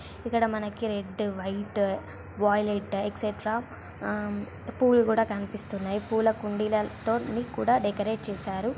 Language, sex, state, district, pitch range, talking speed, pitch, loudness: Telugu, female, Andhra Pradesh, Guntur, 200-225 Hz, 150 wpm, 210 Hz, -28 LUFS